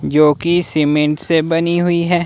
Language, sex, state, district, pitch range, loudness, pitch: Hindi, male, Himachal Pradesh, Shimla, 150-170 Hz, -14 LUFS, 165 Hz